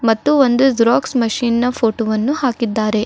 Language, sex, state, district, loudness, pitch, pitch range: Kannada, female, Karnataka, Bidar, -16 LUFS, 235 Hz, 225-255 Hz